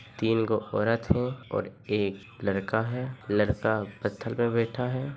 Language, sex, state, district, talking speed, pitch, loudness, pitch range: Hindi, male, Bihar, Madhepura, 140 wpm, 115 Hz, -29 LUFS, 105-125 Hz